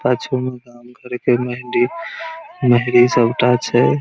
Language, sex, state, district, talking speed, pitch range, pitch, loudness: Maithili, male, Bihar, Araria, 135 wpm, 120-125 Hz, 125 Hz, -17 LUFS